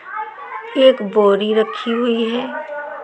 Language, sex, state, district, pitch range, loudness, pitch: Hindi, female, Chhattisgarh, Raipur, 220-295 Hz, -16 LUFS, 250 Hz